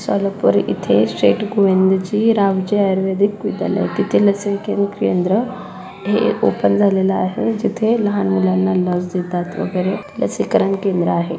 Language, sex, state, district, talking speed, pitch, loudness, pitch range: Marathi, female, Maharashtra, Solapur, 130 wpm, 195 Hz, -17 LUFS, 180-205 Hz